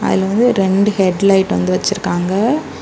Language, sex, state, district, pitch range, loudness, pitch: Tamil, female, Tamil Nadu, Kanyakumari, 185-210 Hz, -15 LUFS, 195 Hz